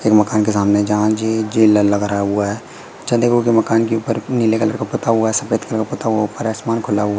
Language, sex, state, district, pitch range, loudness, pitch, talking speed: Hindi, male, Madhya Pradesh, Katni, 105-115 Hz, -17 LUFS, 110 Hz, 260 wpm